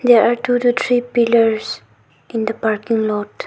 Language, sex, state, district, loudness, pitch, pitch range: English, female, Arunachal Pradesh, Longding, -17 LUFS, 225 Hz, 215-240 Hz